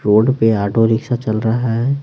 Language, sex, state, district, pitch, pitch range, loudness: Hindi, male, Bihar, Patna, 115 Hz, 110-125 Hz, -16 LUFS